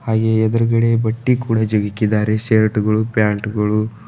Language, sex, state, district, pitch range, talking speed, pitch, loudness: Kannada, male, Karnataka, Bidar, 105-115 Hz, 145 wpm, 110 Hz, -17 LUFS